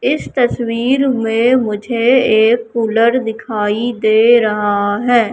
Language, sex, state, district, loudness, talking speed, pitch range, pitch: Hindi, female, Madhya Pradesh, Katni, -14 LUFS, 110 wpm, 220-240 Hz, 230 Hz